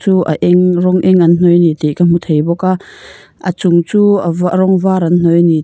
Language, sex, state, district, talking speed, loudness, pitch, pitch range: Mizo, female, Mizoram, Aizawl, 265 wpm, -11 LUFS, 175 Hz, 170-185 Hz